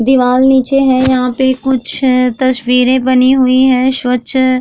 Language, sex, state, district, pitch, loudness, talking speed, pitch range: Hindi, female, Uttar Pradesh, Jyotiba Phule Nagar, 260 Hz, -11 LUFS, 155 wpm, 250-260 Hz